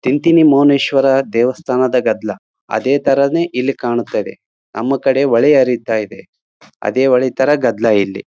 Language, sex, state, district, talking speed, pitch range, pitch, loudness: Kannada, male, Karnataka, Raichur, 140 wpm, 120-140 Hz, 130 Hz, -14 LUFS